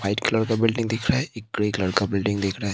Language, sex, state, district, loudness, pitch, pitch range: Hindi, male, Bihar, Katihar, -24 LUFS, 105 Hz, 100-110 Hz